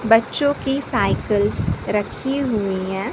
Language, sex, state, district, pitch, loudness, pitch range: Hindi, female, Chhattisgarh, Raipur, 225 Hz, -21 LUFS, 205-270 Hz